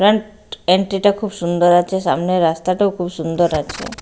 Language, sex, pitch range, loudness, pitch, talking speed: Bengali, female, 175-200 Hz, -17 LUFS, 180 Hz, 150 wpm